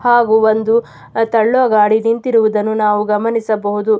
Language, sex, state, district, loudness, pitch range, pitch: Kannada, female, Karnataka, Mysore, -14 LUFS, 215-230 Hz, 220 Hz